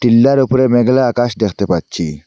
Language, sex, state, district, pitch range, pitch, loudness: Bengali, male, Assam, Hailakandi, 95-130 Hz, 120 Hz, -13 LUFS